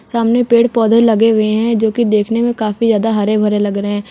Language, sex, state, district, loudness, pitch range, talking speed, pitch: Hindi, female, Uttar Pradesh, Lucknow, -13 LUFS, 210-230 Hz, 250 wpm, 220 Hz